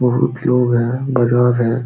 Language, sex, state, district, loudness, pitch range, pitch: Hindi, male, Uttar Pradesh, Jalaun, -16 LUFS, 120-125 Hz, 125 Hz